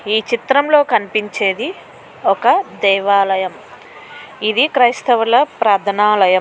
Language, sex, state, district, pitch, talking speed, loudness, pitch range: Telugu, female, Andhra Pradesh, Krishna, 215 Hz, 75 wpm, -15 LUFS, 200-255 Hz